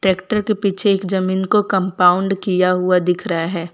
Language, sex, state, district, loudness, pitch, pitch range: Hindi, female, Gujarat, Valsad, -17 LUFS, 190 Hz, 180-200 Hz